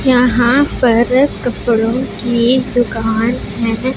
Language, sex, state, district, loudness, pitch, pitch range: Hindi, female, Punjab, Pathankot, -14 LUFS, 240 Hz, 230-255 Hz